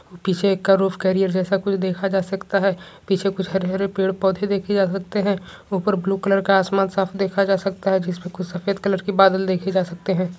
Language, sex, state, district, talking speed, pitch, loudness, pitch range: Hindi, male, Uttarakhand, Uttarkashi, 215 wpm, 195 Hz, -21 LUFS, 190-195 Hz